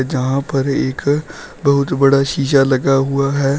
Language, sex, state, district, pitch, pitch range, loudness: Hindi, male, Uttar Pradesh, Shamli, 140 Hz, 135-140 Hz, -16 LUFS